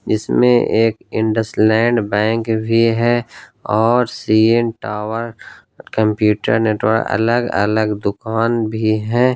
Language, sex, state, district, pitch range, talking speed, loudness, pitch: Hindi, male, Jharkhand, Ranchi, 105-115 Hz, 110 wpm, -16 LUFS, 110 Hz